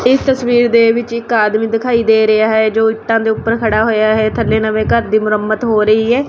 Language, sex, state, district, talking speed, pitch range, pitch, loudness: Punjabi, female, Punjab, Kapurthala, 240 wpm, 215-235 Hz, 225 Hz, -13 LUFS